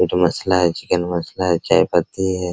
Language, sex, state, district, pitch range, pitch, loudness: Hindi, male, Bihar, Araria, 85-95 Hz, 90 Hz, -19 LUFS